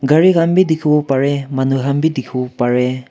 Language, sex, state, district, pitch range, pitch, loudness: Nagamese, male, Nagaland, Kohima, 130-155 Hz, 140 Hz, -15 LUFS